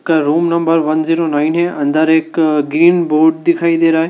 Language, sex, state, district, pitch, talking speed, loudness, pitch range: Hindi, male, Madhya Pradesh, Dhar, 160 Hz, 205 wpm, -13 LUFS, 155-165 Hz